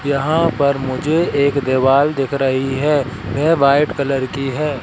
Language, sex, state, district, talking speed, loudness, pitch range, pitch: Hindi, male, Madhya Pradesh, Katni, 160 wpm, -16 LUFS, 135-150 Hz, 140 Hz